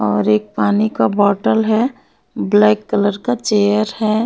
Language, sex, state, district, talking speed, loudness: Hindi, female, Haryana, Jhajjar, 155 wpm, -16 LUFS